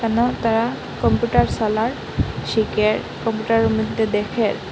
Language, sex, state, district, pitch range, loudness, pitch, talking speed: Bengali, female, Assam, Hailakandi, 215-225 Hz, -20 LUFS, 225 Hz, 100 wpm